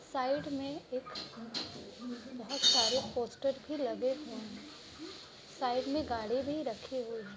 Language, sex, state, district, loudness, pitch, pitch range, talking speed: Hindi, female, Bihar, Kishanganj, -34 LUFS, 255 Hz, 240-280 Hz, 145 wpm